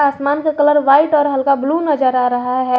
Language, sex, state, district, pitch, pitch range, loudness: Hindi, female, Jharkhand, Garhwa, 280 Hz, 260-295 Hz, -14 LUFS